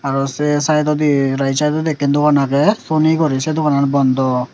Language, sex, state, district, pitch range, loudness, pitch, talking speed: Chakma, male, Tripura, Dhalai, 135-155 Hz, -15 LUFS, 145 Hz, 170 wpm